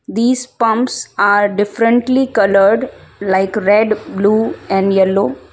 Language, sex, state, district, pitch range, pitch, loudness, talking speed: English, female, Gujarat, Valsad, 195-230 Hz, 210 Hz, -14 LUFS, 110 wpm